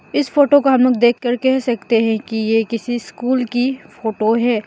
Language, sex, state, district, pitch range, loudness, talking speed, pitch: Hindi, female, Mizoram, Aizawl, 225-260 Hz, -17 LUFS, 220 wpm, 240 Hz